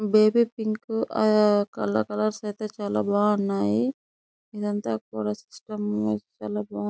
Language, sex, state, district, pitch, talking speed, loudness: Telugu, female, Andhra Pradesh, Chittoor, 205 Hz, 120 wpm, -25 LUFS